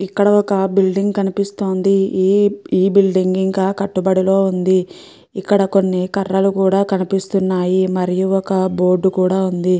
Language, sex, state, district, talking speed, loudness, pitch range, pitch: Telugu, female, Andhra Pradesh, Guntur, 115 wpm, -16 LUFS, 185-195 Hz, 190 Hz